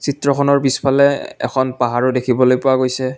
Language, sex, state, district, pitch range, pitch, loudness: Assamese, male, Assam, Kamrup Metropolitan, 130-140 Hz, 130 Hz, -16 LUFS